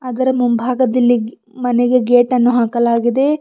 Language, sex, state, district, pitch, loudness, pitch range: Kannada, female, Karnataka, Bidar, 245 Hz, -15 LUFS, 240-255 Hz